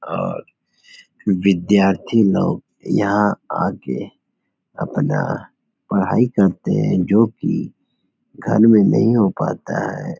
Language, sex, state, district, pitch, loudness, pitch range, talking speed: Hindi, male, Uttar Pradesh, Etah, 105 Hz, -18 LUFS, 95-115 Hz, 95 wpm